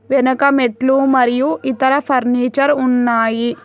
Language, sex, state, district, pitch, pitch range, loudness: Telugu, female, Telangana, Hyderabad, 260 Hz, 245-270 Hz, -15 LUFS